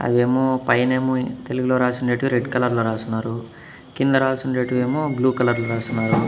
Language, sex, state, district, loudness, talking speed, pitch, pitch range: Telugu, male, Andhra Pradesh, Annamaya, -21 LUFS, 115 wpm, 125 Hz, 120-130 Hz